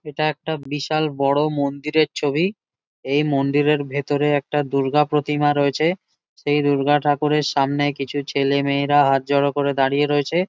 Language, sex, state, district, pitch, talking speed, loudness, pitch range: Bengali, male, West Bengal, Jalpaiguri, 145 Hz, 150 wpm, -20 LUFS, 140-150 Hz